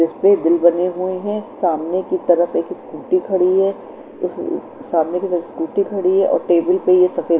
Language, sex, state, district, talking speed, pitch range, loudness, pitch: Hindi, female, Chandigarh, Chandigarh, 195 wpm, 170-190 Hz, -17 LUFS, 180 Hz